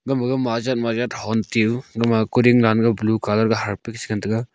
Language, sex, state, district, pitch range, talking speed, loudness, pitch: Wancho, male, Arunachal Pradesh, Longding, 110-120 Hz, 210 wpm, -20 LUFS, 115 Hz